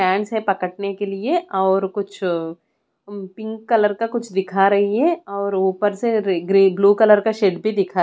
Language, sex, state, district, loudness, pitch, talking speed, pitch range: Hindi, female, Odisha, Khordha, -19 LUFS, 200 Hz, 195 wpm, 190-220 Hz